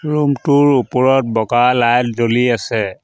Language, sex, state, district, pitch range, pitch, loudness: Assamese, male, Assam, Sonitpur, 120-140 Hz, 125 Hz, -14 LUFS